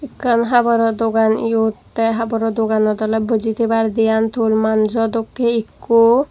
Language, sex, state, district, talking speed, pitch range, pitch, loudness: Chakma, female, Tripura, Dhalai, 140 wpm, 220-230 Hz, 225 Hz, -17 LUFS